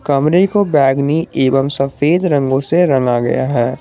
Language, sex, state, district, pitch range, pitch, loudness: Hindi, male, Jharkhand, Garhwa, 135-160 Hz, 140 Hz, -14 LUFS